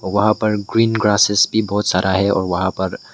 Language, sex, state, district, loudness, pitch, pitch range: Hindi, male, Meghalaya, West Garo Hills, -17 LUFS, 100 Hz, 95-105 Hz